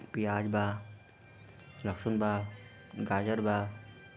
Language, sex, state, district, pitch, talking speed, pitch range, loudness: Bhojpuri, male, Bihar, Sitamarhi, 105 Hz, 85 wpm, 105-110 Hz, -34 LUFS